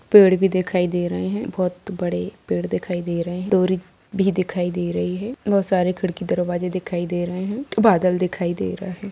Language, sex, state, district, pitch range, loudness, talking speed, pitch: Hindi, female, Bihar, Darbhanga, 175-195 Hz, -21 LUFS, 210 wpm, 180 Hz